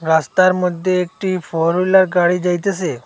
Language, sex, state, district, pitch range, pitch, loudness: Bengali, male, Assam, Hailakandi, 170-185 Hz, 180 Hz, -16 LUFS